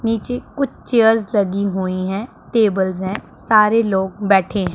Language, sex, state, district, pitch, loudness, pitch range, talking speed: Hindi, female, Punjab, Pathankot, 205 Hz, -18 LUFS, 190-225 Hz, 140 wpm